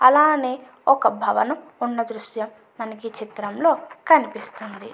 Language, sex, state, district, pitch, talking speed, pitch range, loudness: Telugu, female, Andhra Pradesh, Anantapur, 230 Hz, 110 wpm, 220-260 Hz, -21 LUFS